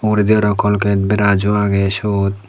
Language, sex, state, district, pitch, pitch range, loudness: Chakma, male, Tripura, Unakoti, 105 Hz, 100-105 Hz, -14 LUFS